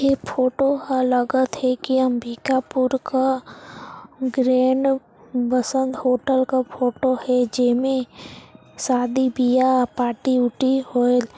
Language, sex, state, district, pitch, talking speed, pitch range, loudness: Chhattisgarhi, female, Chhattisgarh, Sarguja, 255 Hz, 100 wpm, 250-265 Hz, -21 LUFS